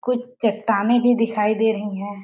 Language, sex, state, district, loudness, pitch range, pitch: Hindi, female, Chhattisgarh, Balrampur, -20 LUFS, 205-240 Hz, 220 Hz